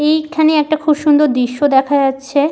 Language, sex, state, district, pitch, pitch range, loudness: Bengali, female, West Bengal, Malda, 295 Hz, 275-305 Hz, -14 LUFS